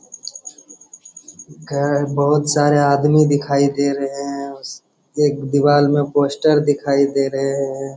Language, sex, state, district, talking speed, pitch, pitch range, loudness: Hindi, male, Jharkhand, Jamtara, 115 wpm, 140 Hz, 140-145 Hz, -17 LUFS